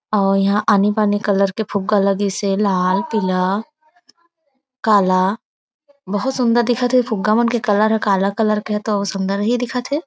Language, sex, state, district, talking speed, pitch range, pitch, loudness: Chhattisgarhi, female, Chhattisgarh, Raigarh, 175 wpm, 200-240 Hz, 215 Hz, -17 LUFS